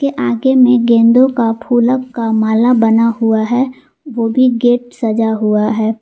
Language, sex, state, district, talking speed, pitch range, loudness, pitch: Hindi, female, Jharkhand, Palamu, 160 wpm, 225-250 Hz, -12 LUFS, 235 Hz